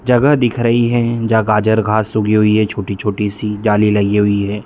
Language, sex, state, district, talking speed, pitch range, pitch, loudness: Hindi, male, Bihar, Muzaffarpur, 205 wpm, 105-115 Hz, 110 Hz, -14 LUFS